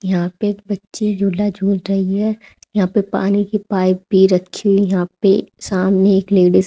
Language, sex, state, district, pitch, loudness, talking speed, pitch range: Hindi, female, Haryana, Charkhi Dadri, 195 Hz, -16 LUFS, 200 wpm, 190-205 Hz